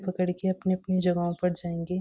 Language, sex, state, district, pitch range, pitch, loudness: Hindi, female, Uttarakhand, Uttarkashi, 175-185 Hz, 180 Hz, -27 LUFS